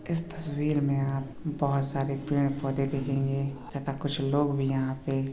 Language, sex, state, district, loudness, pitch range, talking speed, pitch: Hindi, male, Uttar Pradesh, Hamirpur, -29 LUFS, 135-145 Hz, 170 wpm, 140 Hz